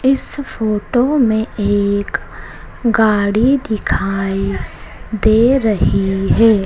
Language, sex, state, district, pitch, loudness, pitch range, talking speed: Hindi, female, Madhya Pradesh, Dhar, 215 Hz, -15 LUFS, 200-235 Hz, 80 wpm